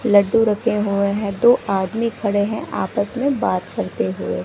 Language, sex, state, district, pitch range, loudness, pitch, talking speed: Hindi, female, Bihar, West Champaran, 200-230 Hz, -19 LUFS, 205 Hz, 175 wpm